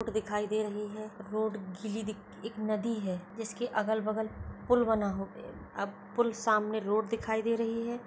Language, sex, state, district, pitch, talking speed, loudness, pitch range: Hindi, female, Uttar Pradesh, Etah, 215 Hz, 195 wpm, -33 LUFS, 210-225 Hz